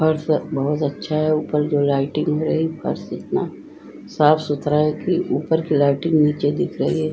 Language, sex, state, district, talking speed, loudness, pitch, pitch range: Hindi, female, Uttar Pradesh, Etah, 185 wpm, -20 LUFS, 150 Hz, 145-155 Hz